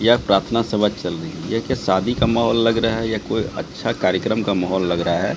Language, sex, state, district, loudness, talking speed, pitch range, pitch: Hindi, male, Bihar, Katihar, -20 LUFS, 245 wpm, 95-115 Hz, 110 Hz